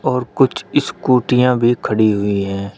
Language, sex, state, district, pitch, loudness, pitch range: Hindi, male, Uttar Pradesh, Shamli, 115 Hz, -16 LUFS, 100-125 Hz